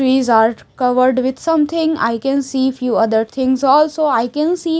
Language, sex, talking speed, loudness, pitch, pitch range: English, female, 190 wpm, -15 LUFS, 265 Hz, 250-300 Hz